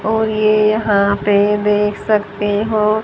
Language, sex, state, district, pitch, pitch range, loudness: Hindi, female, Haryana, Charkhi Dadri, 210 Hz, 205-215 Hz, -15 LUFS